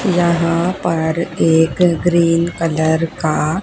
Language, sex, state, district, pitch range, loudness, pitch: Hindi, female, Haryana, Charkhi Dadri, 160-175 Hz, -16 LUFS, 170 Hz